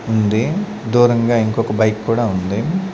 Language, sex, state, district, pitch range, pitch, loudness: Telugu, male, Andhra Pradesh, Sri Satya Sai, 110-120 Hz, 115 Hz, -17 LUFS